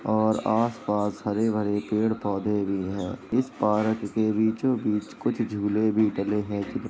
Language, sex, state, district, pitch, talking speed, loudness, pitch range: Hindi, male, Uttar Pradesh, Jalaun, 105 Hz, 140 wpm, -26 LUFS, 105-110 Hz